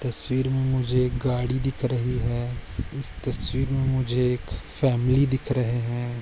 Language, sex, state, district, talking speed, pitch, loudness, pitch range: Hindi, male, Goa, North and South Goa, 165 wpm, 125 Hz, -25 LUFS, 120-130 Hz